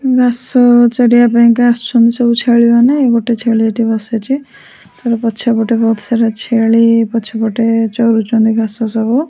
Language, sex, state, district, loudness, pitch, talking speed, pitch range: Odia, female, Odisha, Sambalpur, -11 LUFS, 230 Hz, 135 wpm, 225-240 Hz